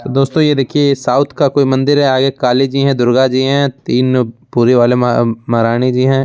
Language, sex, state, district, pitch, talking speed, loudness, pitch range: Hindi, male, Bihar, Begusarai, 130 Hz, 210 wpm, -13 LUFS, 125-140 Hz